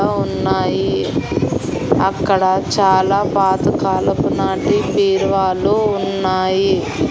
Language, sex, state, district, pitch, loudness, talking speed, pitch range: Telugu, female, Andhra Pradesh, Annamaya, 195 Hz, -16 LUFS, 60 wpm, 190-200 Hz